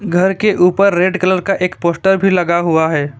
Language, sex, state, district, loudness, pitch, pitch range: Hindi, male, West Bengal, Alipurduar, -14 LUFS, 185 Hz, 170-195 Hz